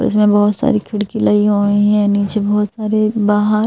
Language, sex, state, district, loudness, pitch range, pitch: Hindi, male, Madhya Pradesh, Bhopal, -15 LUFS, 205-215 Hz, 210 Hz